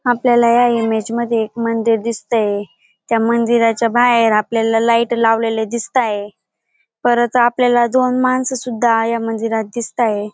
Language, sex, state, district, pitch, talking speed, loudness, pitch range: Marathi, female, Maharashtra, Dhule, 230 Hz, 130 wpm, -16 LUFS, 225-240 Hz